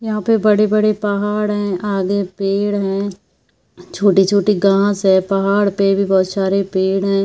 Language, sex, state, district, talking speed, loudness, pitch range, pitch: Hindi, female, Chhattisgarh, Bilaspur, 155 wpm, -16 LUFS, 195-205 Hz, 200 Hz